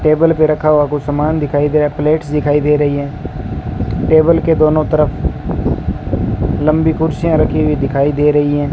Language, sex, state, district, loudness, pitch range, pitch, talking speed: Hindi, male, Rajasthan, Bikaner, -14 LUFS, 145-155 Hz, 150 Hz, 170 wpm